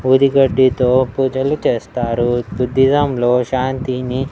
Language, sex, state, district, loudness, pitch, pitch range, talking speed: Telugu, male, Andhra Pradesh, Annamaya, -16 LUFS, 130 Hz, 125-135 Hz, 70 wpm